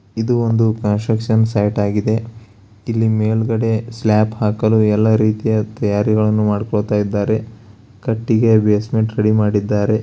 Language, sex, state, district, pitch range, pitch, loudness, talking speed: Kannada, male, Karnataka, Bellary, 105-110 Hz, 110 Hz, -17 LUFS, 110 wpm